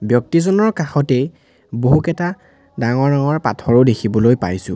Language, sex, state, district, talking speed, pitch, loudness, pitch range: Assamese, male, Assam, Sonitpur, 100 wpm, 130 Hz, -16 LUFS, 120-165 Hz